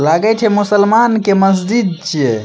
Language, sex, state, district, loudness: Maithili, male, Bihar, Madhepura, -13 LUFS